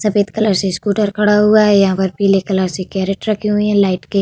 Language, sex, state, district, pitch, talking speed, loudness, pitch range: Hindi, female, Uttar Pradesh, Hamirpur, 200 Hz, 270 wpm, -15 LUFS, 190-210 Hz